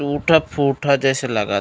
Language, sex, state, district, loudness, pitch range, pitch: Chhattisgarhi, male, Chhattisgarh, Raigarh, -18 LUFS, 135-145 Hz, 140 Hz